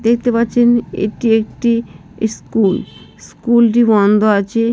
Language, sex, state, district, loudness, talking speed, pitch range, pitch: Bengali, female, West Bengal, Jhargram, -14 LUFS, 100 wpm, 215-235 Hz, 230 Hz